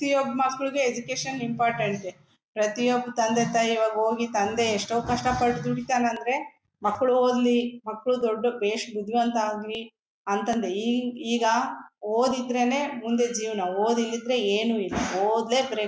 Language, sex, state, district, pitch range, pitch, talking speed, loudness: Kannada, female, Karnataka, Bellary, 220-245 Hz, 235 Hz, 135 wpm, -25 LUFS